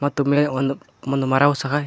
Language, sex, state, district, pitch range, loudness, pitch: Kannada, male, Karnataka, Koppal, 135-145 Hz, -20 LUFS, 140 Hz